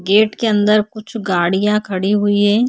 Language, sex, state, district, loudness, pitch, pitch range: Hindi, female, Maharashtra, Chandrapur, -16 LUFS, 210 Hz, 200-215 Hz